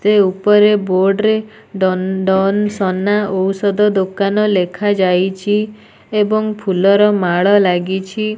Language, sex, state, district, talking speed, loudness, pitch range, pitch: Odia, female, Odisha, Nuapada, 85 wpm, -15 LUFS, 190-210 Hz, 200 Hz